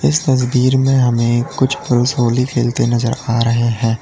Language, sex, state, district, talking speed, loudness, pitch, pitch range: Hindi, male, Uttar Pradesh, Lalitpur, 180 wpm, -15 LUFS, 120 Hz, 115-130 Hz